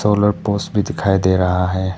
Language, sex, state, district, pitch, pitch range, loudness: Hindi, male, Arunachal Pradesh, Papum Pare, 95 Hz, 90-105 Hz, -17 LUFS